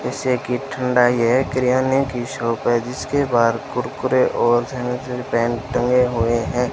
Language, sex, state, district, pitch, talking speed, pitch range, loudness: Hindi, male, Rajasthan, Bikaner, 125 Hz, 145 wpm, 120-125 Hz, -19 LUFS